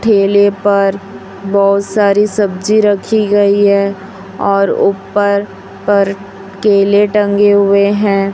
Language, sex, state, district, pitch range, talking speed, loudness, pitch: Hindi, female, Chhattisgarh, Raipur, 195-205 Hz, 110 wpm, -12 LUFS, 200 Hz